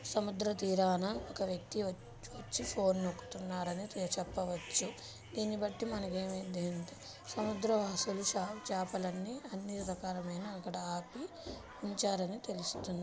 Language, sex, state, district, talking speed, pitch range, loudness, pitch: Telugu, female, Andhra Pradesh, Srikakulam, 110 wpm, 180-205 Hz, -38 LUFS, 190 Hz